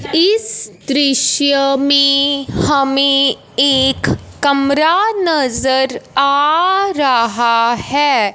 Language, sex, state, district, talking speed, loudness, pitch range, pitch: Hindi, male, Punjab, Fazilka, 70 wpm, -13 LUFS, 265-295 Hz, 280 Hz